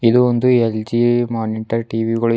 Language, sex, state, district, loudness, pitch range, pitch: Kannada, male, Karnataka, Bidar, -17 LUFS, 115-120 Hz, 115 Hz